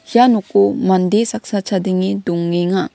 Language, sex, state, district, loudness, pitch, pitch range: Garo, female, Meghalaya, West Garo Hills, -16 LUFS, 190 Hz, 180-220 Hz